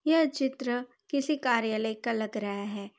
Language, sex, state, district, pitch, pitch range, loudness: Hindi, female, Uttar Pradesh, Hamirpur, 240 Hz, 215-275 Hz, -30 LUFS